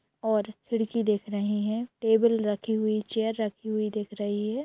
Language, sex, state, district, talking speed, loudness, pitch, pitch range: Hindi, female, Bihar, Darbhanga, 180 wpm, -28 LUFS, 215 Hz, 210-225 Hz